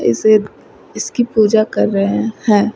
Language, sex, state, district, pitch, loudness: Hindi, female, Uttar Pradesh, Shamli, 210 Hz, -15 LUFS